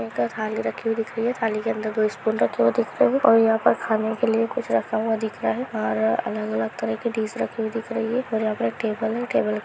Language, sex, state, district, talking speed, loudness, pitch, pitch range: Hindi, female, West Bengal, Jhargram, 280 wpm, -23 LUFS, 220 Hz, 210-225 Hz